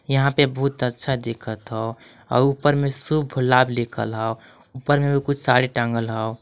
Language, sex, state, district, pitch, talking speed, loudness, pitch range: Magahi, male, Jharkhand, Palamu, 130 Hz, 185 wpm, -21 LUFS, 115-140 Hz